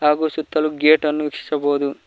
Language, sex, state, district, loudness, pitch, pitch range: Kannada, male, Karnataka, Koppal, -19 LUFS, 150 Hz, 150-155 Hz